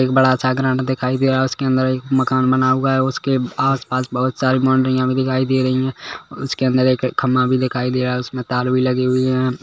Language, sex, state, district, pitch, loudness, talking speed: Hindi, male, Chhattisgarh, Kabirdham, 130 Hz, -18 LUFS, 255 wpm